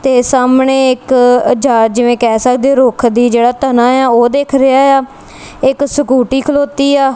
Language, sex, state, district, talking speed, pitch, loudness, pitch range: Punjabi, female, Punjab, Kapurthala, 200 wpm, 260 Hz, -10 LUFS, 245-270 Hz